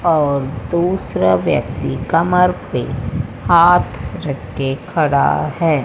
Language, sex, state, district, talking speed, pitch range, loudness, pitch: Hindi, female, Haryana, Rohtak, 105 wpm, 135-170 Hz, -17 LUFS, 150 Hz